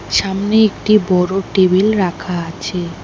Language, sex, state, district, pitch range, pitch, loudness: Bengali, female, West Bengal, Alipurduar, 175-200 Hz, 185 Hz, -15 LUFS